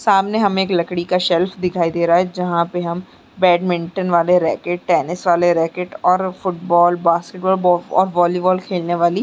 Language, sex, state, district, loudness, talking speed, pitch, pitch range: Hindi, female, Chhattisgarh, Sarguja, -17 LUFS, 175 wpm, 180 Hz, 175-185 Hz